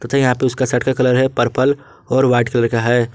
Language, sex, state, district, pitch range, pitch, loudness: Hindi, male, Jharkhand, Ranchi, 120-130 Hz, 125 Hz, -16 LUFS